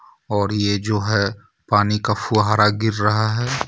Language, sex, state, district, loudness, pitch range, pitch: Hindi, male, Jharkhand, Ranchi, -19 LUFS, 105-110 Hz, 105 Hz